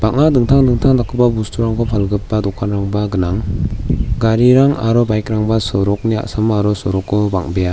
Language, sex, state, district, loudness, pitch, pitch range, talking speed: Garo, male, Meghalaya, South Garo Hills, -15 LUFS, 110 Hz, 100-115 Hz, 130 wpm